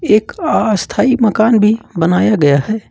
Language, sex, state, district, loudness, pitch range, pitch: Hindi, male, Jharkhand, Ranchi, -13 LUFS, 170-220 Hz, 215 Hz